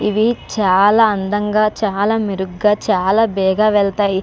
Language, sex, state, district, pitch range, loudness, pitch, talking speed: Telugu, female, Andhra Pradesh, Krishna, 195-215 Hz, -15 LUFS, 210 Hz, 115 wpm